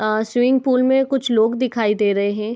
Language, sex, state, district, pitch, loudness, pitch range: Hindi, female, Bihar, Begusarai, 230 Hz, -18 LUFS, 215-255 Hz